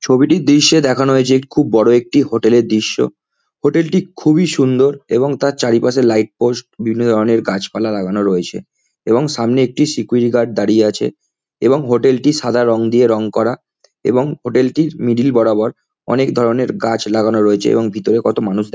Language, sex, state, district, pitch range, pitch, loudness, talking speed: Bengali, male, West Bengal, Kolkata, 110-135 Hz, 120 Hz, -14 LUFS, 175 wpm